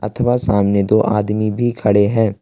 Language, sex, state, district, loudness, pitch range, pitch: Hindi, male, Jharkhand, Ranchi, -16 LUFS, 100-115 Hz, 105 Hz